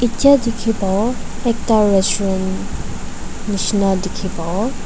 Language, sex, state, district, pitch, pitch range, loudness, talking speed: Nagamese, female, Nagaland, Dimapur, 205 Hz, 190-230 Hz, -18 LUFS, 100 wpm